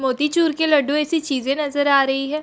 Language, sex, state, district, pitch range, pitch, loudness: Hindi, female, Bihar, Sitamarhi, 275-305 Hz, 295 Hz, -19 LUFS